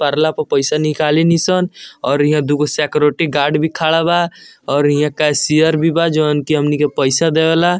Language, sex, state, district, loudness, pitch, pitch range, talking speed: Bhojpuri, male, Bihar, Muzaffarpur, -15 LUFS, 155 Hz, 150-165 Hz, 200 wpm